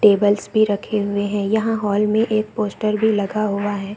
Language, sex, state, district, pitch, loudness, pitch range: Hindi, female, Bihar, Saran, 210 Hz, -19 LUFS, 205-215 Hz